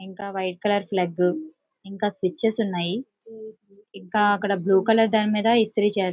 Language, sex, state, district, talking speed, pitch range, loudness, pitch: Telugu, female, Andhra Pradesh, Visakhapatnam, 145 wpm, 190-220 Hz, -23 LUFS, 205 Hz